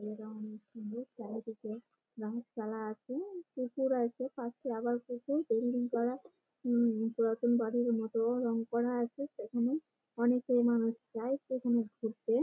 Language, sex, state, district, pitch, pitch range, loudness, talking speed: Bengali, female, West Bengal, Malda, 235 Hz, 225-245 Hz, -35 LUFS, 130 wpm